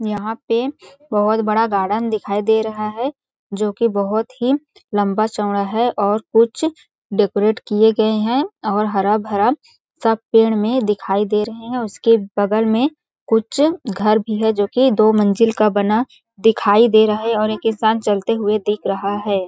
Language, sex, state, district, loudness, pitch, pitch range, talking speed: Hindi, female, Chhattisgarh, Balrampur, -17 LUFS, 220 Hz, 210-230 Hz, 170 wpm